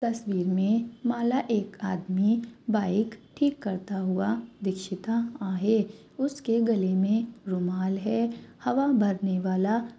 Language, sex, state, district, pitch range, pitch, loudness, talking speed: Marathi, female, Maharashtra, Sindhudurg, 190-235 Hz, 215 Hz, -28 LUFS, 115 wpm